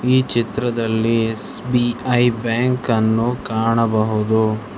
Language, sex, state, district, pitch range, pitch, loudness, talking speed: Kannada, male, Karnataka, Bangalore, 110-120 Hz, 115 Hz, -18 LUFS, 65 wpm